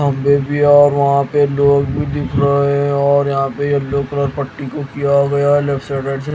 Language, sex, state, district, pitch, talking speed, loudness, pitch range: Hindi, male, Haryana, Jhajjar, 140 Hz, 210 wpm, -15 LUFS, 140-145 Hz